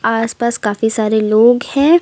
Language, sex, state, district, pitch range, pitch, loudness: Hindi, female, Uttar Pradesh, Lucknow, 220-240 Hz, 225 Hz, -14 LUFS